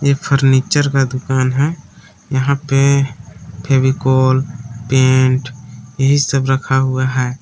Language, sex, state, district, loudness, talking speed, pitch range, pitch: Hindi, male, Jharkhand, Palamu, -15 LUFS, 115 wpm, 130-140 Hz, 130 Hz